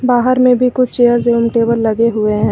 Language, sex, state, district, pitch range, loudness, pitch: Hindi, female, Uttar Pradesh, Lucknow, 230-250 Hz, -13 LUFS, 240 Hz